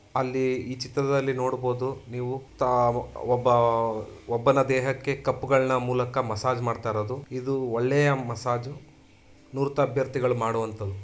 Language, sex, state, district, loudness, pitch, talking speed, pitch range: Kannada, male, Karnataka, Dharwad, -26 LUFS, 130 Hz, 105 wpm, 120-135 Hz